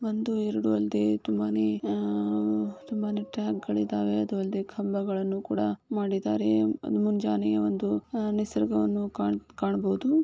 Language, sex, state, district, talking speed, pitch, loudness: Kannada, female, Karnataka, Shimoga, 115 wpm, 105 Hz, -28 LUFS